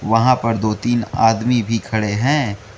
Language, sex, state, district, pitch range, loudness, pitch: Hindi, male, Mizoram, Aizawl, 110-120 Hz, -17 LUFS, 115 Hz